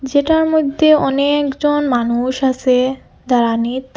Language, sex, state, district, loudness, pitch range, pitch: Bengali, female, Assam, Hailakandi, -15 LUFS, 250-295 Hz, 265 Hz